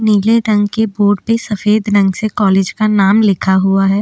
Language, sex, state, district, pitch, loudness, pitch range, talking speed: Hindi, female, Uttarakhand, Tehri Garhwal, 205 Hz, -13 LUFS, 195-215 Hz, 210 wpm